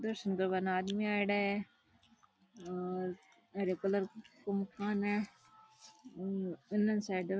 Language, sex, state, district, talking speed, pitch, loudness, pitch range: Rajasthani, female, Rajasthan, Churu, 130 wpm, 200 Hz, -36 LUFS, 190-210 Hz